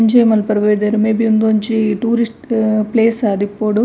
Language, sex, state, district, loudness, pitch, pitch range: Tulu, female, Karnataka, Dakshina Kannada, -15 LUFS, 220 Hz, 210-225 Hz